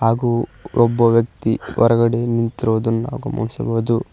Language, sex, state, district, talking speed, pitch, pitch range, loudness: Kannada, male, Karnataka, Koppal, 85 wpm, 115 Hz, 115-120 Hz, -18 LUFS